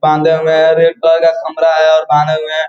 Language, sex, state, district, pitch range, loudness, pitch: Hindi, male, Bihar, Gopalganj, 155-165 Hz, -11 LUFS, 160 Hz